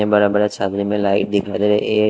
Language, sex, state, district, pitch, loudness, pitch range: Hindi, male, Delhi, New Delhi, 105 Hz, -18 LUFS, 100-105 Hz